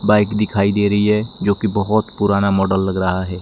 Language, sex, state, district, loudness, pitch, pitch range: Hindi, male, Himachal Pradesh, Shimla, -17 LUFS, 100 Hz, 95-105 Hz